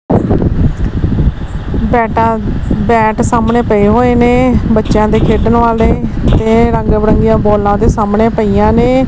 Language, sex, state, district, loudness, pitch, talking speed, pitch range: Punjabi, female, Punjab, Kapurthala, -11 LUFS, 225 Hz, 120 wpm, 215-235 Hz